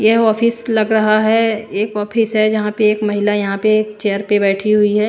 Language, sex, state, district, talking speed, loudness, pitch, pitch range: Hindi, female, Bihar, Patna, 225 wpm, -15 LUFS, 215 Hz, 210-220 Hz